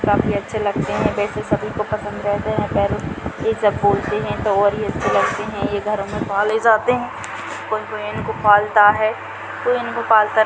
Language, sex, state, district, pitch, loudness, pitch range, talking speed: Hindi, female, Chhattisgarh, Raigarh, 215 Hz, -19 LUFS, 205-220 Hz, 210 wpm